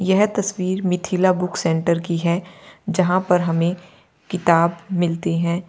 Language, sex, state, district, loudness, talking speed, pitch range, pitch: Hindi, female, Uttar Pradesh, Lalitpur, -20 LUFS, 135 wpm, 170-185 Hz, 180 Hz